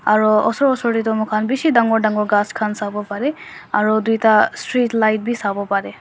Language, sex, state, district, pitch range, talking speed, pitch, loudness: Nagamese, female, Nagaland, Dimapur, 210-230 Hz, 210 wpm, 215 Hz, -18 LUFS